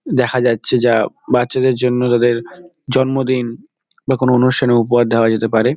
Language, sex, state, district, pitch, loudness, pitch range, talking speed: Bengali, male, West Bengal, Dakshin Dinajpur, 125 Hz, -15 LUFS, 120-130 Hz, 135 wpm